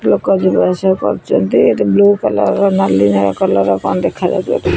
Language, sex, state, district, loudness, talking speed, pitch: Odia, female, Odisha, Khordha, -13 LUFS, 190 wpm, 180 Hz